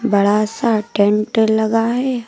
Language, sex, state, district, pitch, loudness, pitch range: Hindi, female, Uttar Pradesh, Lucknow, 220 Hz, -16 LUFS, 210-235 Hz